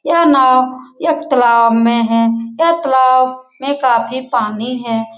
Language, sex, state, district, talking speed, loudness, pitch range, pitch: Hindi, female, Bihar, Lakhisarai, 150 wpm, -13 LUFS, 230-265 Hz, 255 Hz